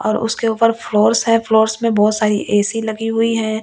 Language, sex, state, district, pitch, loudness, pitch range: Hindi, female, Delhi, New Delhi, 220 Hz, -16 LUFS, 215-230 Hz